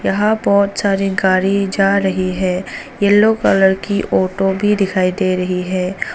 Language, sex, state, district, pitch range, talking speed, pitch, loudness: Hindi, female, Arunachal Pradesh, Papum Pare, 185-200 Hz, 155 wpm, 195 Hz, -15 LUFS